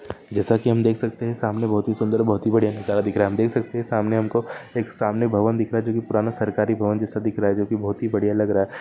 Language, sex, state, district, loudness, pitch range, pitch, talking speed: Hindi, male, Maharashtra, Solapur, -22 LUFS, 105-115 Hz, 110 Hz, 285 wpm